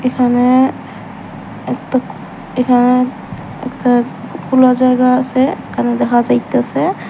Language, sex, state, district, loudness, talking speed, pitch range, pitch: Bengali, female, Tripura, Unakoti, -14 LUFS, 85 wpm, 195-255 Hz, 250 Hz